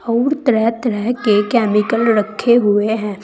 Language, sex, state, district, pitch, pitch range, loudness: Hindi, female, Uttar Pradesh, Saharanpur, 225 Hz, 210-240 Hz, -15 LUFS